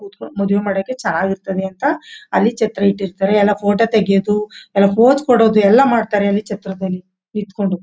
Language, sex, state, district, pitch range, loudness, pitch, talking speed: Kannada, female, Karnataka, Mysore, 195-225 Hz, -16 LUFS, 205 Hz, 140 wpm